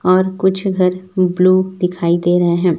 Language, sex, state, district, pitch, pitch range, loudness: Hindi, male, Chhattisgarh, Raipur, 185 Hz, 175-185 Hz, -15 LUFS